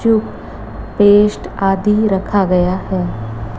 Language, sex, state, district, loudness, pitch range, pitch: Hindi, female, Chhattisgarh, Raipur, -15 LUFS, 145-210 Hz, 195 Hz